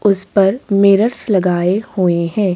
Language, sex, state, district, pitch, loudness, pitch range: Hindi, female, Chhattisgarh, Korba, 195 Hz, -14 LUFS, 185-205 Hz